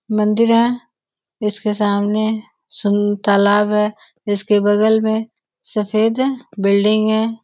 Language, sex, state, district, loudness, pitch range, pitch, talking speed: Hindi, female, Uttar Pradesh, Gorakhpur, -17 LUFS, 205-225 Hz, 215 Hz, 105 wpm